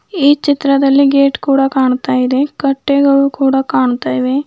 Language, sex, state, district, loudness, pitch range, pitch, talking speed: Kannada, female, Karnataka, Bidar, -12 LUFS, 265-280 Hz, 275 Hz, 120 wpm